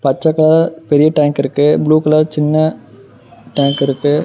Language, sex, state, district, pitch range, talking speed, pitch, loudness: Tamil, male, Tamil Nadu, Namakkal, 140-155 Hz, 140 wpm, 150 Hz, -13 LUFS